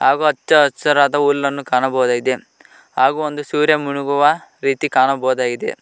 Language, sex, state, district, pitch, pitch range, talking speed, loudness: Kannada, male, Karnataka, Koppal, 140 Hz, 130-150 Hz, 115 wpm, -17 LUFS